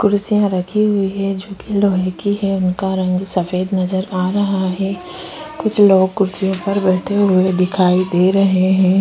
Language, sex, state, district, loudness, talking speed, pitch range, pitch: Hindi, female, Uttar Pradesh, Jyotiba Phule Nagar, -16 LUFS, 165 wpm, 185-200 Hz, 190 Hz